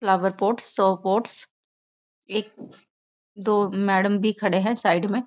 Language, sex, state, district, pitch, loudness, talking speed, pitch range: Hindi, female, Bihar, Sitamarhi, 205 Hz, -23 LUFS, 125 wpm, 195-215 Hz